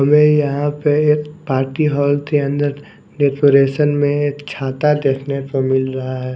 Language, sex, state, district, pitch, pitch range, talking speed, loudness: Hindi, male, Bihar, West Champaran, 145 Hz, 135-150 Hz, 160 wpm, -16 LUFS